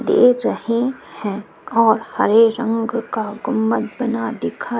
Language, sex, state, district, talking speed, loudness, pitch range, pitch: Hindi, female, Uttar Pradesh, Jyotiba Phule Nagar, 140 wpm, -19 LUFS, 215-235 Hz, 225 Hz